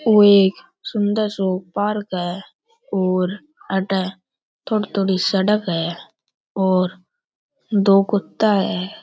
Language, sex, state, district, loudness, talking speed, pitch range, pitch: Rajasthani, male, Rajasthan, Churu, -19 LUFS, 105 wpm, 185-210 Hz, 195 Hz